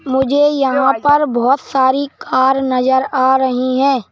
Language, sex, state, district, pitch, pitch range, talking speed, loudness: Hindi, male, Madhya Pradesh, Bhopal, 265 Hz, 260-275 Hz, 145 wpm, -14 LUFS